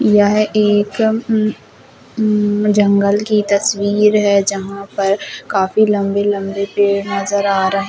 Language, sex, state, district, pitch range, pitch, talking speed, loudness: Hindi, female, Uttar Pradesh, Jalaun, 200-210 Hz, 205 Hz, 135 wpm, -15 LUFS